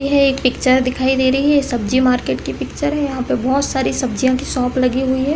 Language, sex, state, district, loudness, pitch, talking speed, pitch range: Hindi, female, Uttar Pradesh, Deoria, -17 LUFS, 260 Hz, 245 wpm, 255-275 Hz